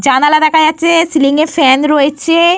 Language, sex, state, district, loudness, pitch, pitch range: Bengali, female, Jharkhand, Jamtara, -10 LUFS, 310 Hz, 290-330 Hz